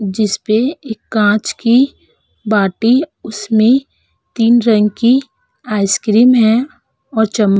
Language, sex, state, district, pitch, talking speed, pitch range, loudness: Hindi, female, Uttar Pradesh, Budaun, 225 Hz, 120 wpm, 210-250 Hz, -13 LUFS